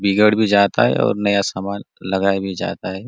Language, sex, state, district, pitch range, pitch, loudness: Hindi, male, Chhattisgarh, Bastar, 95-100 Hz, 100 Hz, -18 LUFS